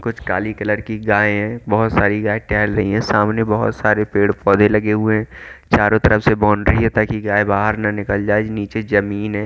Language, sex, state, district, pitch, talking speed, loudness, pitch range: Hindi, male, Haryana, Charkhi Dadri, 105 Hz, 205 wpm, -17 LUFS, 105-110 Hz